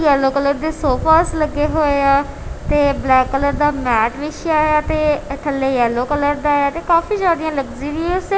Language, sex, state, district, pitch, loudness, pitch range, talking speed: Punjabi, female, Punjab, Kapurthala, 290 Hz, -17 LUFS, 275-310 Hz, 185 wpm